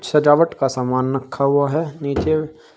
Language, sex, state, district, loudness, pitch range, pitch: Hindi, male, Uttar Pradesh, Saharanpur, -19 LUFS, 135-155 Hz, 140 Hz